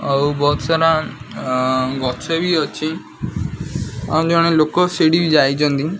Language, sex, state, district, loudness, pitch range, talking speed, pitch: Odia, male, Odisha, Khordha, -18 LUFS, 140-165 Hz, 300 wpm, 155 Hz